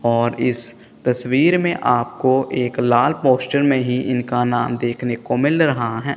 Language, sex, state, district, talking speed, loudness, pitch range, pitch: Hindi, male, Punjab, Kapurthala, 165 wpm, -18 LUFS, 120-135 Hz, 125 Hz